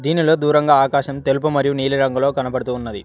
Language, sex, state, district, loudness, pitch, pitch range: Telugu, male, Telangana, Mahabubabad, -17 LUFS, 140 Hz, 135-150 Hz